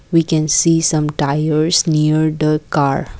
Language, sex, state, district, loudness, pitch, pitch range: English, female, Assam, Kamrup Metropolitan, -15 LUFS, 155 Hz, 150-160 Hz